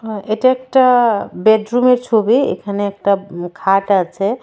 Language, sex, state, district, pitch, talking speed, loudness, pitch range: Bengali, female, Tripura, West Tripura, 215 Hz, 120 wpm, -15 LUFS, 200-245 Hz